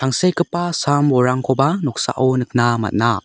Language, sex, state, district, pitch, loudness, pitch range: Garo, male, Meghalaya, South Garo Hills, 130 Hz, -17 LUFS, 125-150 Hz